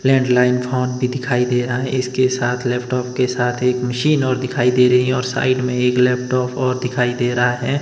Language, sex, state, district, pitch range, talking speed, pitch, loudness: Hindi, male, Himachal Pradesh, Shimla, 125-130 Hz, 220 wpm, 125 Hz, -18 LUFS